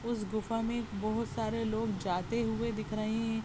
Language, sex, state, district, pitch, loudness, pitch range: Hindi, female, Goa, North and South Goa, 225 Hz, -34 LUFS, 215-230 Hz